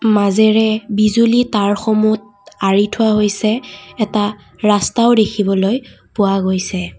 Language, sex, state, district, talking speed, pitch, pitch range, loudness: Assamese, female, Assam, Kamrup Metropolitan, 95 wpm, 215 Hz, 200-220 Hz, -15 LUFS